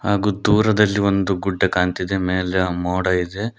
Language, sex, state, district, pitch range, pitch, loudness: Kannada, male, Karnataka, Koppal, 90-100 Hz, 95 Hz, -19 LUFS